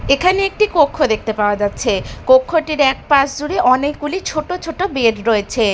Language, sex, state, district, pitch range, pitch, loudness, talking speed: Bengali, female, Bihar, Katihar, 230-360 Hz, 290 Hz, -16 LUFS, 145 wpm